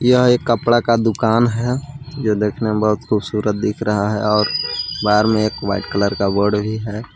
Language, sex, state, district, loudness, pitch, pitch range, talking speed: Hindi, male, Jharkhand, Palamu, -18 LUFS, 110 Hz, 105-120 Hz, 200 wpm